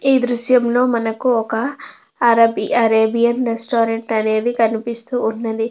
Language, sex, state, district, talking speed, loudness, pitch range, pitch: Telugu, female, Andhra Pradesh, Anantapur, 95 wpm, -17 LUFS, 225-245 Hz, 230 Hz